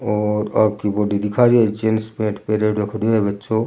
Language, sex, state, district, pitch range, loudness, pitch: Rajasthani, male, Rajasthan, Churu, 105-110 Hz, -19 LUFS, 110 Hz